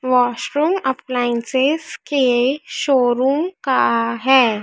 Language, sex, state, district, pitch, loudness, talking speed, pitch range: Hindi, female, Madhya Pradesh, Dhar, 260 Hz, -18 LUFS, 80 wpm, 245-280 Hz